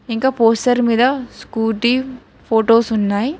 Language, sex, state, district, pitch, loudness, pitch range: Telugu, female, Telangana, Hyderabad, 235 Hz, -16 LUFS, 225-255 Hz